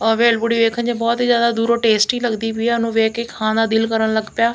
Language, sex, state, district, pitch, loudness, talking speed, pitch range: Punjabi, female, Punjab, Kapurthala, 230 Hz, -17 LUFS, 275 wpm, 225-235 Hz